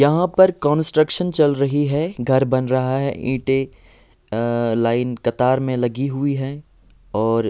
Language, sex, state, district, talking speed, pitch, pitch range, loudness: Hindi, male, Bihar, Patna, 160 wpm, 135 Hz, 120-145 Hz, -19 LUFS